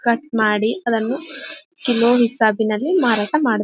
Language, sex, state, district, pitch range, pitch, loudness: Kannada, female, Karnataka, Gulbarga, 220-290 Hz, 235 Hz, -18 LUFS